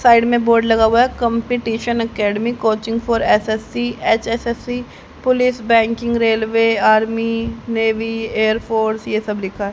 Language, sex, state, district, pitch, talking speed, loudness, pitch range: Hindi, female, Haryana, Jhajjar, 225 Hz, 140 wpm, -17 LUFS, 220-235 Hz